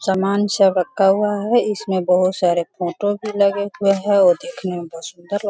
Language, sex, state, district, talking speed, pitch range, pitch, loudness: Hindi, female, Bihar, Sitamarhi, 205 wpm, 185-205 Hz, 200 Hz, -18 LUFS